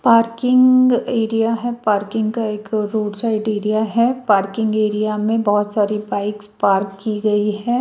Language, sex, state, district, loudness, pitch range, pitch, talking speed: Hindi, female, Chhattisgarh, Raipur, -18 LUFS, 210-230 Hz, 215 Hz, 155 wpm